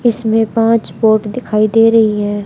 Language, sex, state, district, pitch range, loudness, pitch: Hindi, female, Haryana, Charkhi Dadri, 215-225 Hz, -13 LUFS, 220 Hz